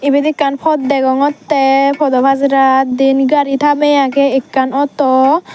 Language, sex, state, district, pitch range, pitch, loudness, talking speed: Chakma, female, Tripura, Dhalai, 270-290 Hz, 275 Hz, -12 LUFS, 130 wpm